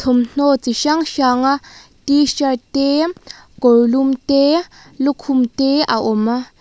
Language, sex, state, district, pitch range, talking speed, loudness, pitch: Mizo, female, Mizoram, Aizawl, 250-285 Hz, 120 wpm, -16 LUFS, 270 Hz